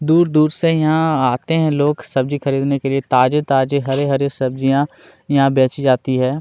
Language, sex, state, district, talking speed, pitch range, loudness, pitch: Hindi, male, Chhattisgarh, Kabirdham, 160 wpm, 135-155 Hz, -17 LUFS, 140 Hz